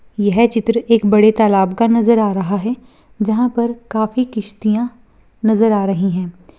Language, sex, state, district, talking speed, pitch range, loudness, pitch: Hindi, female, Bihar, Bhagalpur, 145 wpm, 205-235 Hz, -16 LUFS, 220 Hz